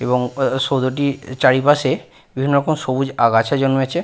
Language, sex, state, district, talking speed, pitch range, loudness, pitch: Bengali, male, West Bengal, Purulia, 150 wpm, 130-140 Hz, -18 LUFS, 135 Hz